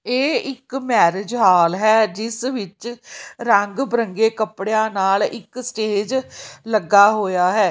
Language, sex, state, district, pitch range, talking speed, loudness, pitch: Punjabi, female, Punjab, Kapurthala, 200-240 Hz, 125 wpm, -18 LUFS, 215 Hz